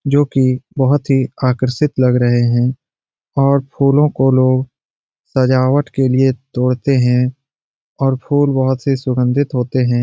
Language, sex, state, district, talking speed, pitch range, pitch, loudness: Hindi, male, Bihar, Jamui, 145 wpm, 125-140 Hz, 130 Hz, -15 LUFS